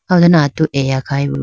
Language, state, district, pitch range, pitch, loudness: Idu Mishmi, Arunachal Pradesh, Lower Dibang Valley, 140-165 Hz, 140 Hz, -14 LUFS